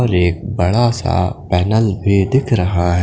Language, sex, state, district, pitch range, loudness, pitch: Hindi, male, Punjab, Fazilka, 90-115 Hz, -16 LUFS, 100 Hz